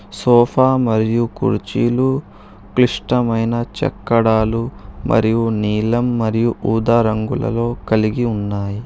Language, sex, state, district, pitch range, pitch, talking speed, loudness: Telugu, male, Telangana, Hyderabad, 110-120 Hz, 115 Hz, 80 wpm, -17 LUFS